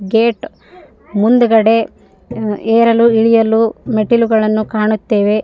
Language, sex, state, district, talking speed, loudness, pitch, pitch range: Kannada, female, Karnataka, Raichur, 65 wpm, -13 LUFS, 225 Hz, 215-230 Hz